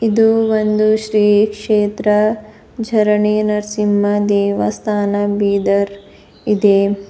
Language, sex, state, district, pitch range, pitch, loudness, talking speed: Kannada, female, Karnataka, Bidar, 205-215 Hz, 210 Hz, -15 LUFS, 75 wpm